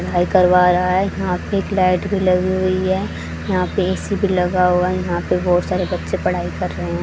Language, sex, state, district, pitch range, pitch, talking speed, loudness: Hindi, female, Haryana, Charkhi Dadri, 180-185 Hz, 180 Hz, 220 wpm, -18 LUFS